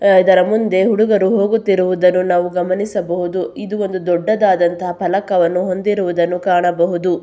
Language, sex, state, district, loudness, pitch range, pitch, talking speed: Kannada, female, Karnataka, Belgaum, -15 LUFS, 180-200 Hz, 185 Hz, 110 wpm